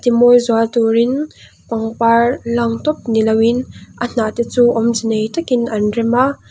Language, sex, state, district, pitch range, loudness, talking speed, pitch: Mizo, female, Mizoram, Aizawl, 225-245 Hz, -15 LUFS, 165 wpm, 235 Hz